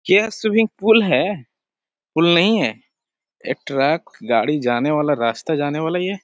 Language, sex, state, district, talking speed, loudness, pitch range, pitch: Hindi, male, Bihar, Jahanabad, 155 wpm, -18 LUFS, 150-215 Hz, 175 Hz